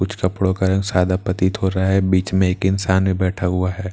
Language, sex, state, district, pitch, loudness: Hindi, male, Bihar, Katihar, 95 Hz, -19 LUFS